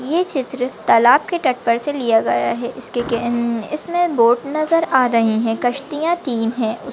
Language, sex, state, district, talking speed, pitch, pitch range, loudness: Hindi, female, Maharashtra, Chandrapur, 175 wpm, 250 Hz, 230-290 Hz, -18 LUFS